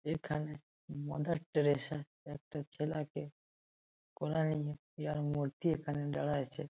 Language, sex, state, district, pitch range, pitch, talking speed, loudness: Bengali, male, West Bengal, Jalpaiguri, 145-155 Hz, 150 Hz, 115 wpm, -38 LUFS